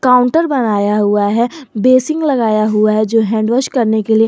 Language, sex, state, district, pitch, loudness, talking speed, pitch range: Hindi, male, Jharkhand, Garhwa, 225 Hz, -13 LUFS, 195 wpm, 215-255 Hz